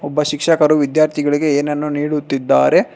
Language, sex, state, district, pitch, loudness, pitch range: Kannada, male, Karnataka, Bangalore, 150 Hz, -15 LUFS, 145-150 Hz